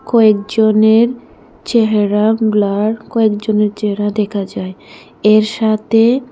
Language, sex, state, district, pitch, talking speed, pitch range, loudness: Bengali, female, Tripura, West Tripura, 215 Hz, 85 wpm, 210-225 Hz, -14 LUFS